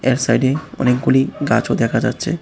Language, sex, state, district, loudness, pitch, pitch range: Bengali, male, Tripura, West Tripura, -17 LUFS, 130 Hz, 125-135 Hz